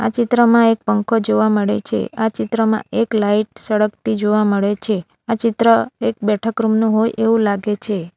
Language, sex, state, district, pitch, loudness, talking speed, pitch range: Gujarati, female, Gujarat, Valsad, 220 Hz, -17 LUFS, 185 wpm, 210-230 Hz